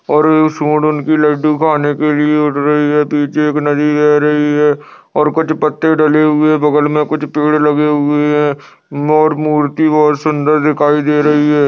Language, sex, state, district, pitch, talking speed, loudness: Hindi, male, Goa, North and South Goa, 150 Hz, 185 wpm, -12 LUFS